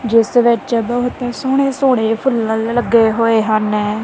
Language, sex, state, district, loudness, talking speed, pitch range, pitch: Punjabi, female, Punjab, Kapurthala, -15 LUFS, 150 wpm, 220-245 Hz, 230 Hz